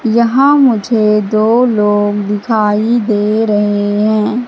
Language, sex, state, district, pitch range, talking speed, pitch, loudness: Hindi, female, Madhya Pradesh, Katni, 210-235 Hz, 105 wpm, 215 Hz, -12 LUFS